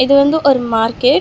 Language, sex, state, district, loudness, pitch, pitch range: Tamil, female, Tamil Nadu, Chennai, -13 LUFS, 260 Hz, 235-280 Hz